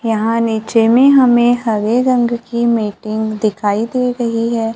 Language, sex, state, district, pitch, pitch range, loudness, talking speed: Hindi, female, Maharashtra, Gondia, 230 Hz, 220-240 Hz, -14 LUFS, 150 wpm